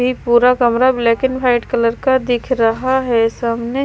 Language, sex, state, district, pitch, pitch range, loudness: Hindi, female, Himachal Pradesh, Shimla, 245 Hz, 235-255 Hz, -15 LUFS